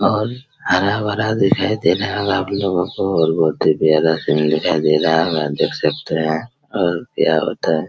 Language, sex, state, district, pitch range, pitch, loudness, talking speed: Hindi, male, Bihar, Araria, 80-100 Hz, 85 Hz, -17 LUFS, 180 wpm